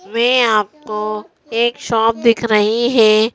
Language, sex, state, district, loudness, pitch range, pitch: Hindi, female, Madhya Pradesh, Bhopal, -15 LUFS, 215-235 Hz, 225 Hz